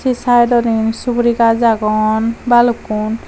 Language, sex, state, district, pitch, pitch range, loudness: Chakma, female, Tripura, Dhalai, 230 Hz, 220-240 Hz, -14 LUFS